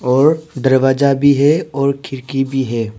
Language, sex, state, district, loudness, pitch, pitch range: Hindi, male, Arunachal Pradesh, Papum Pare, -15 LUFS, 135 Hz, 130-140 Hz